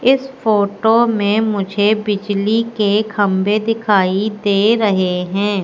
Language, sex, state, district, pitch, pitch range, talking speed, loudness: Hindi, female, Madhya Pradesh, Katni, 210 Hz, 200-220 Hz, 115 wpm, -16 LUFS